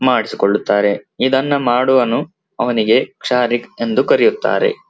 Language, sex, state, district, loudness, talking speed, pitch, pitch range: Kannada, male, Karnataka, Belgaum, -16 LUFS, 85 wpm, 125 Hz, 120-190 Hz